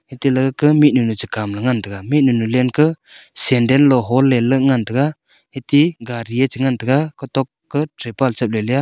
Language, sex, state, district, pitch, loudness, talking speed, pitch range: Wancho, male, Arunachal Pradesh, Longding, 130 Hz, -16 LUFS, 175 wpm, 120-140 Hz